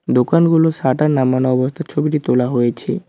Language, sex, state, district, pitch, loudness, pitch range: Bengali, male, West Bengal, Cooch Behar, 145 Hz, -16 LUFS, 130-160 Hz